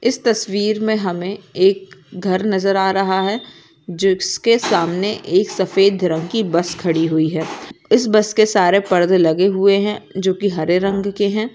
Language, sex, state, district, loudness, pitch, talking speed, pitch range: Hindi, female, Maharashtra, Aurangabad, -17 LUFS, 195 Hz, 165 wpm, 180-210 Hz